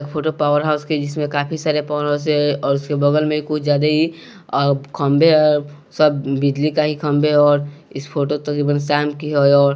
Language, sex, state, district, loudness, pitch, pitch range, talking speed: Hindi, male, Bihar, West Champaran, -17 LUFS, 145 Hz, 145-150 Hz, 180 wpm